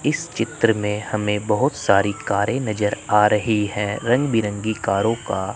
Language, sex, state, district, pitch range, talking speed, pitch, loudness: Hindi, male, Chandigarh, Chandigarh, 105-115 Hz, 160 wpm, 105 Hz, -20 LUFS